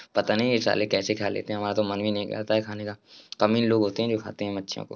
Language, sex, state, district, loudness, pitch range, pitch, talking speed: Hindi, male, Bihar, Jahanabad, -26 LUFS, 105-110 Hz, 105 Hz, 325 wpm